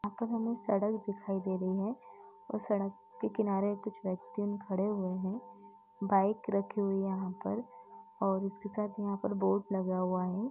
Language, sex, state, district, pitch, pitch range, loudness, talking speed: Hindi, female, Uttar Pradesh, Etah, 200 Hz, 190-220 Hz, -35 LUFS, 190 wpm